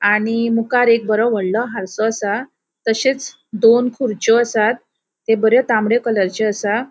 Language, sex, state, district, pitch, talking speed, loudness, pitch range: Konkani, female, Goa, North and South Goa, 225 Hz, 140 wpm, -17 LUFS, 215-240 Hz